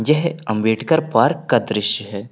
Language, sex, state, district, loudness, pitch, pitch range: Hindi, male, Uttar Pradesh, Lucknow, -18 LUFS, 110 Hz, 105-155 Hz